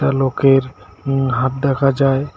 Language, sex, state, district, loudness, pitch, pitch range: Bengali, male, West Bengal, Cooch Behar, -16 LUFS, 135 Hz, 130-135 Hz